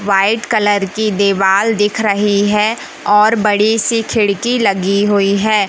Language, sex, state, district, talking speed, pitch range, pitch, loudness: Hindi, male, Madhya Pradesh, Katni, 145 wpm, 200-220 Hz, 210 Hz, -13 LUFS